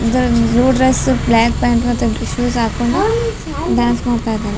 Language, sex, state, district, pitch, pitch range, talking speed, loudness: Kannada, female, Karnataka, Raichur, 235 Hz, 220-250 Hz, 155 wpm, -15 LUFS